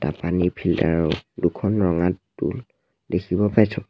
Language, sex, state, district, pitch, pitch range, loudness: Assamese, male, Assam, Sonitpur, 90 Hz, 85-105 Hz, -22 LUFS